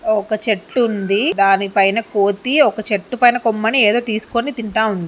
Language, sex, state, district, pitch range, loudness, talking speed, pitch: Telugu, female, Andhra Pradesh, Guntur, 200-235 Hz, -16 LUFS, 155 wpm, 215 Hz